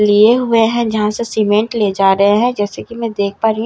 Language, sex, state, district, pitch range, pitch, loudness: Hindi, female, Bihar, Katihar, 205-230 Hz, 215 Hz, -14 LUFS